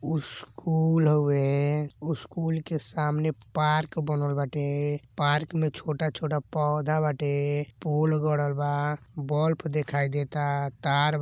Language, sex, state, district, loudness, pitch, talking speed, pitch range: Bhojpuri, male, Uttar Pradesh, Gorakhpur, -27 LUFS, 150 Hz, 105 wpm, 145-155 Hz